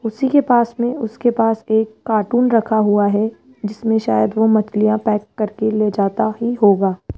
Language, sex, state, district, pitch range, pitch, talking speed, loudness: Hindi, female, Rajasthan, Jaipur, 210-230 Hz, 220 Hz, 175 wpm, -17 LUFS